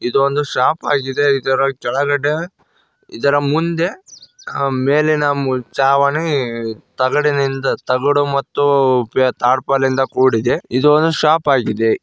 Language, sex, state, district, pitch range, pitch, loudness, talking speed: Kannada, male, Karnataka, Koppal, 130-145 Hz, 140 Hz, -16 LUFS, 110 wpm